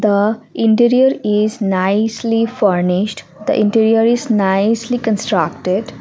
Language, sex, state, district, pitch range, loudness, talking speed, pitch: English, female, Assam, Kamrup Metropolitan, 200-230 Hz, -15 LUFS, 100 wpm, 220 Hz